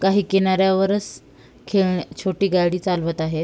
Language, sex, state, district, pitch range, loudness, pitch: Marathi, female, Maharashtra, Sindhudurg, 175-195 Hz, -20 LUFS, 190 Hz